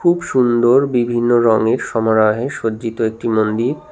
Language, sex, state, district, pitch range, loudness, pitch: Bengali, male, West Bengal, Cooch Behar, 110-125 Hz, -16 LUFS, 115 Hz